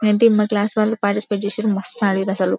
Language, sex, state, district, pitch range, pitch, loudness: Telugu, female, Telangana, Karimnagar, 200-215 Hz, 210 Hz, -19 LUFS